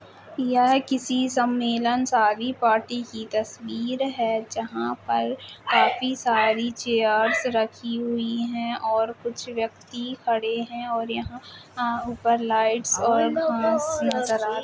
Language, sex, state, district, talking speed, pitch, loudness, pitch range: Hindi, female, Uttar Pradesh, Budaun, 125 wpm, 235 Hz, -24 LUFS, 220-245 Hz